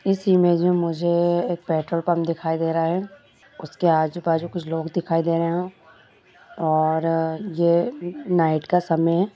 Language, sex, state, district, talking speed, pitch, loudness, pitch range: Hindi, female, Bihar, Madhepura, 165 wpm, 170 Hz, -22 LUFS, 165-175 Hz